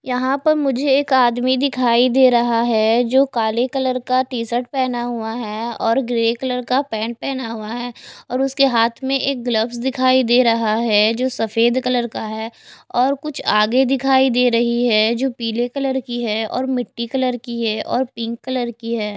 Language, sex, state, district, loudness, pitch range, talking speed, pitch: Hindi, female, Bihar, West Champaran, -18 LUFS, 230-260 Hz, 195 wpm, 245 Hz